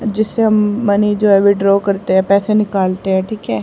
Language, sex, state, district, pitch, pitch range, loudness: Hindi, female, Haryana, Jhajjar, 200 Hz, 195-215 Hz, -14 LUFS